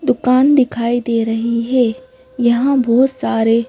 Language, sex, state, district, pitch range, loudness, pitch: Hindi, female, Madhya Pradesh, Bhopal, 230-255 Hz, -15 LUFS, 240 Hz